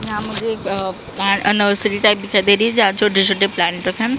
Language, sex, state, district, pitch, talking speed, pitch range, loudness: Hindi, female, Maharashtra, Mumbai Suburban, 205 Hz, 230 wpm, 195-215 Hz, -16 LUFS